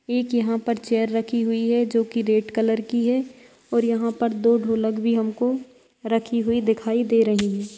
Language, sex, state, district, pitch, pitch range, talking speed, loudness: Hindi, female, Bihar, Begusarai, 230 Hz, 225-235 Hz, 200 wpm, -22 LUFS